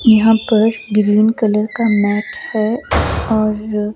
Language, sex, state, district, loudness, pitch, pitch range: Hindi, female, Himachal Pradesh, Shimla, -15 LUFS, 215 Hz, 210-225 Hz